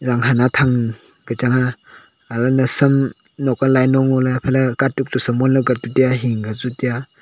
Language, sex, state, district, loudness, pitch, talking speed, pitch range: Wancho, male, Arunachal Pradesh, Longding, -17 LUFS, 130 Hz, 210 wpm, 125-135 Hz